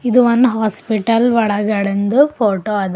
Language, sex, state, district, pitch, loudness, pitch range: Kannada, female, Karnataka, Bidar, 220 Hz, -15 LUFS, 205-240 Hz